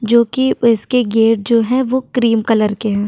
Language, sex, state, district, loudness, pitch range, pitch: Hindi, female, Maharashtra, Chandrapur, -14 LUFS, 225-250 Hz, 230 Hz